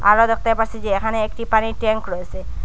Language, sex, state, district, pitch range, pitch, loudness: Bengali, female, Assam, Hailakandi, 195-225 Hz, 220 Hz, -20 LUFS